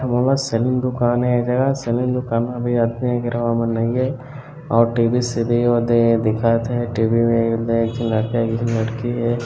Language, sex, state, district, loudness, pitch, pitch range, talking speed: Hindi, male, Chhattisgarh, Bilaspur, -19 LUFS, 120 Hz, 115-125 Hz, 30 wpm